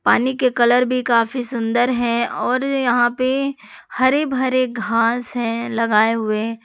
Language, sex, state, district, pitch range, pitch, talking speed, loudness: Hindi, female, Jharkhand, Garhwa, 230-255 Hz, 240 Hz, 145 wpm, -18 LUFS